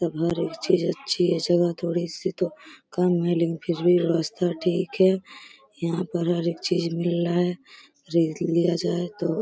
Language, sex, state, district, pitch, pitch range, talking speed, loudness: Hindi, female, Uttar Pradesh, Deoria, 175 Hz, 170-180 Hz, 165 wpm, -24 LUFS